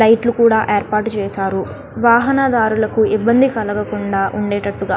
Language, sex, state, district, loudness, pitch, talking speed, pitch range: Telugu, female, Andhra Pradesh, Guntur, -16 LUFS, 215 Hz, 110 wpm, 200-235 Hz